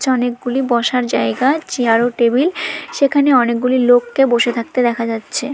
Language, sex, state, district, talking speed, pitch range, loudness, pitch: Bengali, female, West Bengal, Dakshin Dinajpur, 165 wpm, 235-265 Hz, -15 LUFS, 245 Hz